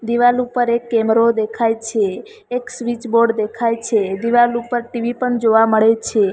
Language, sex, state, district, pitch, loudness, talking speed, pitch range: Gujarati, female, Gujarat, Valsad, 230 Hz, -17 LUFS, 160 wpm, 225-240 Hz